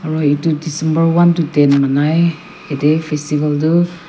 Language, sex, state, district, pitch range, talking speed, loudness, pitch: Nagamese, female, Nagaland, Kohima, 150-165 Hz, 145 wpm, -14 LUFS, 155 Hz